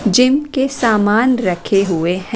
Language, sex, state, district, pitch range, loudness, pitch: Hindi, female, Chandigarh, Chandigarh, 195-255 Hz, -15 LUFS, 220 Hz